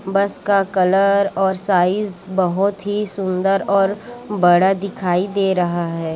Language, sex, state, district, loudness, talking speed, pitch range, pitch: Chhattisgarhi, female, Chhattisgarh, Korba, -18 LUFS, 135 wpm, 185-200 Hz, 195 Hz